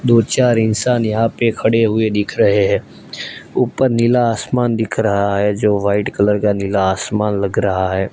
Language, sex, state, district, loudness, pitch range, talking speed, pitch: Hindi, male, Gujarat, Gandhinagar, -16 LUFS, 100-115 Hz, 185 wpm, 110 Hz